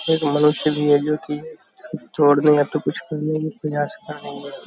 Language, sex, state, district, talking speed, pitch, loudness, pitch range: Hindi, male, Bihar, Darbhanga, 75 wpm, 150 Hz, -20 LUFS, 145-155 Hz